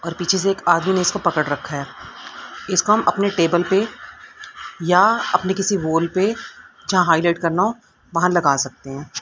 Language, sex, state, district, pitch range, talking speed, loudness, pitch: Hindi, female, Haryana, Rohtak, 165-200 Hz, 180 wpm, -19 LUFS, 180 Hz